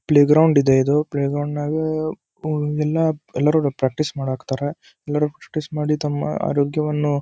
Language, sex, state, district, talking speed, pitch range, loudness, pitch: Kannada, male, Karnataka, Dharwad, 125 wpm, 145-155 Hz, -20 LUFS, 150 Hz